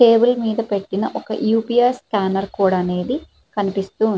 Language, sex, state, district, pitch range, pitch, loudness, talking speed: Telugu, female, Andhra Pradesh, Srikakulam, 195-230 Hz, 215 Hz, -19 LUFS, 130 wpm